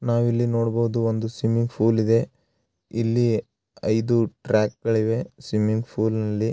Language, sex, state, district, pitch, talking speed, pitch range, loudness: Kannada, male, Karnataka, Raichur, 115 Hz, 130 wpm, 110-115 Hz, -23 LUFS